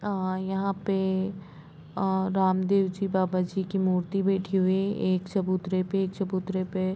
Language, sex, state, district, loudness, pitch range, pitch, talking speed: Hindi, female, Chhattisgarh, Rajnandgaon, -27 LUFS, 185-195 Hz, 190 Hz, 145 wpm